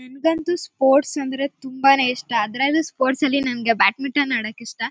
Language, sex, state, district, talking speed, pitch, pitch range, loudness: Kannada, female, Karnataka, Mysore, 160 wpm, 270 Hz, 250-285 Hz, -20 LUFS